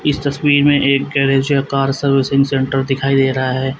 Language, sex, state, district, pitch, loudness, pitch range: Hindi, male, Uttar Pradesh, Lalitpur, 135 Hz, -15 LUFS, 135-140 Hz